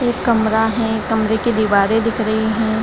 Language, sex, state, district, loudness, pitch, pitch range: Hindi, female, Bihar, Lakhisarai, -17 LUFS, 220 Hz, 220-225 Hz